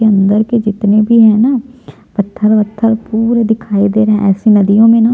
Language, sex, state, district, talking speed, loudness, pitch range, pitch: Hindi, female, Chhattisgarh, Jashpur, 210 wpm, -11 LUFS, 205-230 Hz, 215 Hz